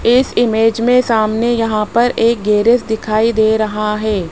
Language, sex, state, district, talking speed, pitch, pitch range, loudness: Hindi, female, Rajasthan, Jaipur, 165 wpm, 220 Hz, 215-235 Hz, -14 LUFS